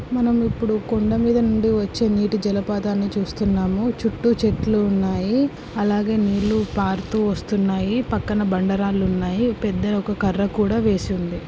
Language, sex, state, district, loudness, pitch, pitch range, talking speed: Telugu, female, Andhra Pradesh, Guntur, -21 LUFS, 205 Hz, 200-220 Hz, 125 wpm